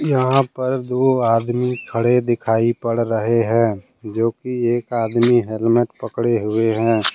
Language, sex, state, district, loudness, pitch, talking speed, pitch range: Hindi, male, Jharkhand, Deoghar, -18 LUFS, 115 Hz, 145 wpm, 115-125 Hz